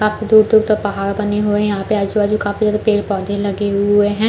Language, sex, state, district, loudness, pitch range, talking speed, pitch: Hindi, female, Chhattisgarh, Balrampur, -16 LUFS, 205-215 Hz, 250 wpm, 205 Hz